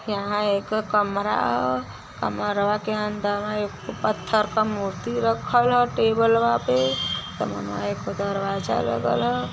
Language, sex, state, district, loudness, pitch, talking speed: Bhojpuri, female, Uttar Pradesh, Varanasi, -23 LUFS, 200 Hz, 125 wpm